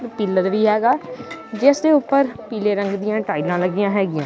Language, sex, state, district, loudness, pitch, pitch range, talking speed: Punjabi, male, Punjab, Kapurthala, -19 LUFS, 215 Hz, 200-250 Hz, 170 wpm